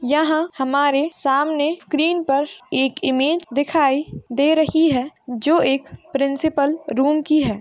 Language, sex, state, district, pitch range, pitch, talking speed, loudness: Hindi, female, Bihar, Madhepura, 275-315 Hz, 290 Hz, 135 wpm, -19 LUFS